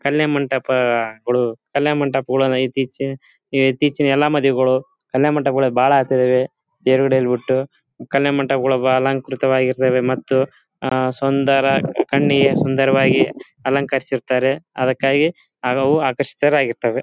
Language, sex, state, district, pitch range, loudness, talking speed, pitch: Kannada, male, Karnataka, Bellary, 130-140 Hz, -18 LUFS, 100 wpm, 135 Hz